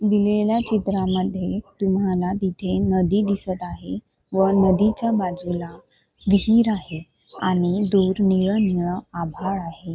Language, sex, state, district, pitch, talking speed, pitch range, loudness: Marathi, female, Maharashtra, Solapur, 190 Hz, 110 wpm, 180-200 Hz, -21 LUFS